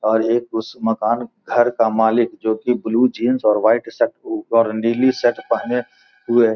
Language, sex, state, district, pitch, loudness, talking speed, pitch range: Hindi, male, Bihar, Gopalganj, 115 Hz, -18 LUFS, 185 wpm, 110-120 Hz